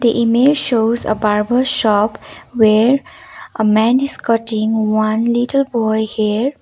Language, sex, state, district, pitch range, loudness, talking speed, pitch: English, female, Sikkim, Gangtok, 215-255 Hz, -15 LUFS, 125 wpm, 230 Hz